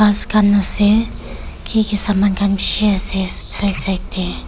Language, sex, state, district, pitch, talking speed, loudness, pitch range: Nagamese, female, Nagaland, Kohima, 200 Hz, 145 wpm, -15 LUFS, 195-210 Hz